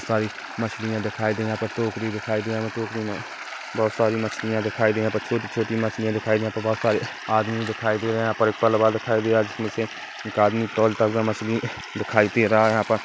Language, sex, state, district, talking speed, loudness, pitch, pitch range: Hindi, female, Chhattisgarh, Kabirdham, 210 wpm, -24 LUFS, 110 Hz, 110-115 Hz